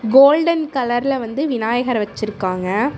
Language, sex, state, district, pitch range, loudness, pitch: Tamil, female, Tamil Nadu, Namakkal, 215-275 Hz, -18 LUFS, 245 Hz